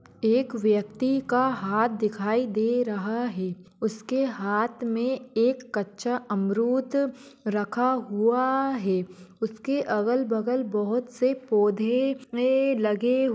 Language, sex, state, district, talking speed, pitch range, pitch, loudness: Hindi, female, Maharashtra, Pune, 110 wpm, 210-255 Hz, 235 Hz, -26 LUFS